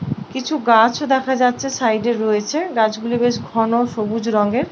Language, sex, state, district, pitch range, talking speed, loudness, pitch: Bengali, female, West Bengal, Paschim Medinipur, 225-260 Hz, 140 wpm, -18 LUFS, 240 Hz